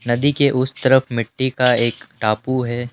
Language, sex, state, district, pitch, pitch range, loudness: Hindi, male, Rajasthan, Jaipur, 125 Hz, 120-130 Hz, -18 LUFS